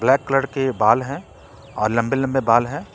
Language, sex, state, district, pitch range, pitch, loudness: Hindi, male, Jharkhand, Ranchi, 110-135 Hz, 130 Hz, -19 LUFS